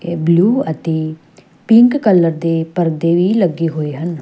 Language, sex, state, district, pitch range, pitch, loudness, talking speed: Punjabi, female, Punjab, Fazilka, 160-190 Hz, 170 Hz, -14 LUFS, 140 wpm